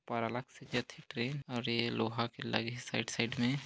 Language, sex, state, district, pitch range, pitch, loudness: Hindi, male, Chhattisgarh, Korba, 115-125 Hz, 120 Hz, -37 LUFS